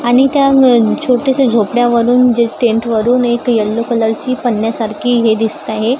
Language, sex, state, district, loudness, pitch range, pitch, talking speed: Marathi, female, Maharashtra, Gondia, -12 LUFS, 225-250 Hz, 235 Hz, 130 wpm